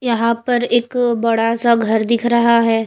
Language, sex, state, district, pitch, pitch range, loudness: Hindi, female, Chhattisgarh, Raipur, 235 Hz, 230-240 Hz, -16 LUFS